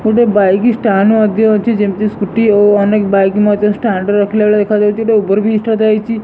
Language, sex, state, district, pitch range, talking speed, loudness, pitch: Odia, male, Odisha, Sambalpur, 205-220 Hz, 210 wpm, -12 LUFS, 210 Hz